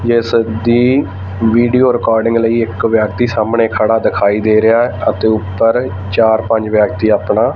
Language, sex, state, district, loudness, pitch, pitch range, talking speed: Punjabi, male, Punjab, Fazilka, -13 LUFS, 115 Hz, 110-115 Hz, 160 wpm